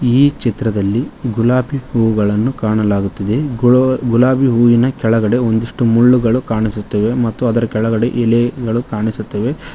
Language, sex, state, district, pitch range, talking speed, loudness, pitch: Kannada, male, Karnataka, Koppal, 110-125 Hz, 105 wpm, -15 LUFS, 115 Hz